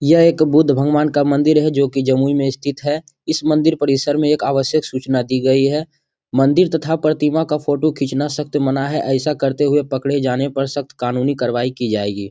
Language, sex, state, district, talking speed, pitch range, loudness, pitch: Hindi, male, Bihar, Jamui, 210 wpm, 135-150 Hz, -17 LUFS, 140 Hz